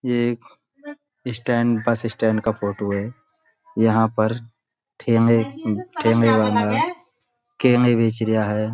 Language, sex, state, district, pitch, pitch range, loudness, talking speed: Hindi, male, Uttar Pradesh, Budaun, 115 Hz, 110-125 Hz, -20 LUFS, 115 wpm